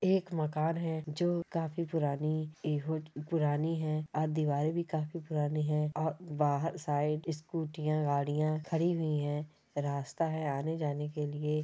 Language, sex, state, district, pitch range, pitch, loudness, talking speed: Hindi, female, Chhattisgarh, Raigarh, 150-160 Hz, 155 Hz, -34 LUFS, 145 wpm